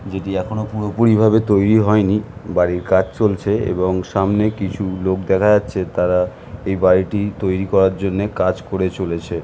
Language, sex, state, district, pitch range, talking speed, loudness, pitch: Bengali, male, West Bengal, North 24 Parganas, 95-105 Hz, 140 wpm, -18 LUFS, 95 Hz